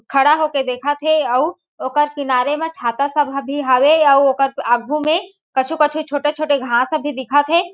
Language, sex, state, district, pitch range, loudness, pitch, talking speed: Chhattisgarhi, female, Chhattisgarh, Jashpur, 270-310 Hz, -17 LUFS, 290 Hz, 185 wpm